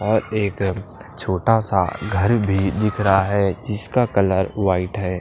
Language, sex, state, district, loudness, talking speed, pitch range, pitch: Hindi, male, Punjab, Pathankot, -20 LUFS, 150 wpm, 95-110 Hz, 100 Hz